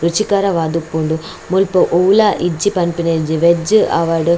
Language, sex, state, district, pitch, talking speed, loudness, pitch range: Tulu, female, Karnataka, Dakshina Kannada, 170 Hz, 125 wpm, -15 LUFS, 165-190 Hz